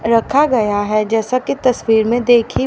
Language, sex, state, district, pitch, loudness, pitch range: Hindi, female, Haryana, Rohtak, 230 Hz, -15 LUFS, 220-250 Hz